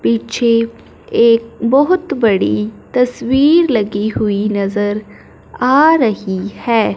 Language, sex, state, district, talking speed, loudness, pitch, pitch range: Hindi, female, Punjab, Fazilka, 95 wpm, -14 LUFS, 230 Hz, 205-255 Hz